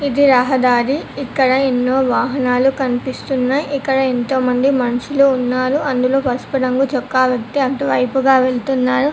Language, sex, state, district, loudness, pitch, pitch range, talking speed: Telugu, female, Telangana, Komaram Bheem, -16 LUFS, 260 Hz, 255-270 Hz, 120 wpm